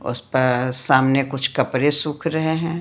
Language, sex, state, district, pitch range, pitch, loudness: Hindi, female, Bihar, Patna, 130-155 Hz, 135 Hz, -19 LUFS